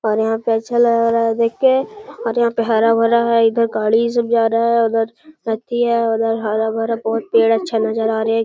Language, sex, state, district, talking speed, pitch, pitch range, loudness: Hindi, male, Bihar, Gaya, 225 wpm, 230 Hz, 225-235 Hz, -17 LUFS